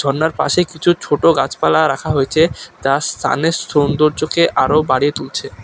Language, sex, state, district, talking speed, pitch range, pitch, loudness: Bengali, male, West Bengal, Alipurduar, 140 wpm, 140-165 Hz, 155 Hz, -16 LUFS